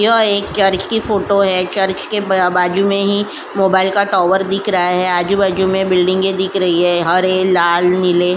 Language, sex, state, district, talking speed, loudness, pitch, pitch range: Hindi, female, Uttar Pradesh, Jyotiba Phule Nagar, 200 wpm, -14 LUFS, 190 Hz, 180-200 Hz